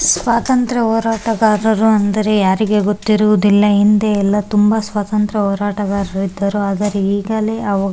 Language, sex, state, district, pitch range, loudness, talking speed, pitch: Kannada, male, Karnataka, Bellary, 200-220 Hz, -15 LUFS, 115 wpm, 210 Hz